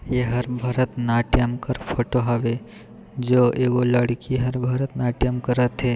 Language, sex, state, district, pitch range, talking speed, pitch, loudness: Chhattisgarhi, male, Chhattisgarh, Sarguja, 120-125 Hz, 130 wpm, 125 Hz, -22 LUFS